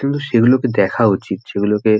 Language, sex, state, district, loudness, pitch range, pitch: Bengali, male, West Bengal, North 24 Parganas, -16 LUFS, 105-130 Hz, 115 Hz